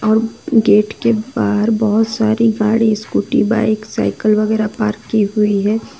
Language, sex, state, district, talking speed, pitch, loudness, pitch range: Hindi, female, Jharkhand, Ranchi, 140 wpm, 220 Hz, -15 LUFS, 215-225 Hz